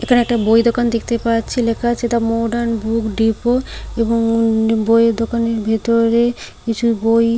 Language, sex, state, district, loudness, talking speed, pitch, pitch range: Bengali, female, West Bengal, Paschim Medinipur, -16 LUFS, 155 wpm, 230 Hz, 225-235 Hz